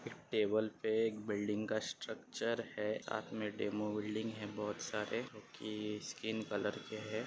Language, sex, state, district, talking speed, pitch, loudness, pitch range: Hindi, male, Maharashtra, Nagpur, 155 wpm, 105 Hz, -40 LUFS, 105-110 Hz